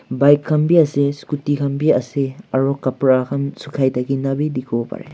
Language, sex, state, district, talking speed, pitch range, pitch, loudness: Nagamese, male, Nagaland, Kohima, 185 wpm, 130-145 Hz, 140 Hz, -18 LUFS